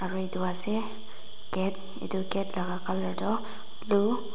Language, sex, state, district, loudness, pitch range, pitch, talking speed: Nagamese, female, Nagaland, Dimapur, -24 LUFS, 185-210 Hz, 195 Hz, 150 wpm